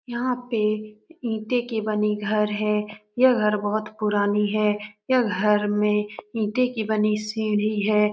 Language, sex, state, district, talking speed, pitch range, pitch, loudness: Hindi, female, Bihar, Saran, 150 wpm, 210-220 Hz, 215 Hz, -23 LUFS